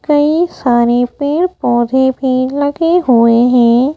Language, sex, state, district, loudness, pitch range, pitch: Hindi, female, Madhya Pradesh, Bhopal, -12 LUFS, 240-295 Hz, 260 Hz